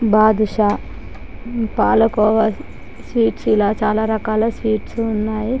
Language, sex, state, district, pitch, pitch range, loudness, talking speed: Telugu, female, Andhra Pradesh, Chittoor, 220 Hz, 215-225 Hz, -18 LUFS, 95 wpm